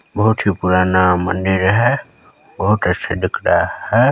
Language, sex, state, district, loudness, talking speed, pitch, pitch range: Hindi, male, Chhattisgarh, Balrampur, -16 LUFS, 160 wpm, 95 Hz, 90-105 Hz